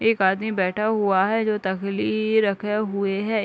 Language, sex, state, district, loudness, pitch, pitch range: Hindi, female, Bihar, Gopalganj, -22 LUFS, 210 Hz, 195-220 Hz